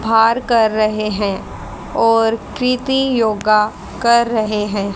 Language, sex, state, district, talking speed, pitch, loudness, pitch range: Hindi, female, Haryana, Rohtak, 120 wpm, 225 Hz, -16 LUFS, 210-235 Hz